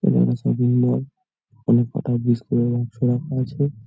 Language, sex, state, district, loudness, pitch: Bengali, male, West Bengal, North 24 Parganas, -21 LUFS, 120 Hz